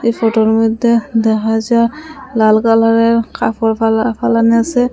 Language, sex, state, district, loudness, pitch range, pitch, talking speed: Bengali, female, Assam, Hailakandi, -13 LUFS, 225-235 Hz, 225 Hz, 135 wpm